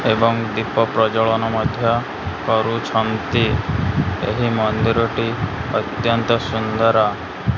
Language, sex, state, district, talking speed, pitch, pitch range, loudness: Odia, male, Odisha, Malkangiri, 80 wpm, 115 Hz, 110-115 Hz, -19 LUFS